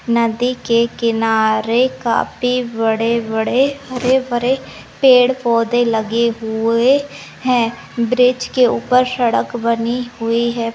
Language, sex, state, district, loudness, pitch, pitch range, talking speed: Hindi, female, Rajasthan, Churu, -16 LUFS, 235 Hz, 230-250 Hz, 110 wpm